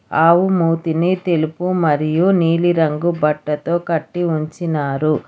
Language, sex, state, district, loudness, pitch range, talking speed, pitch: Telugu, female, Telangana, Hyderabad, -17 LUFS, 155-175 Hz, 90 wpm, 165 Hz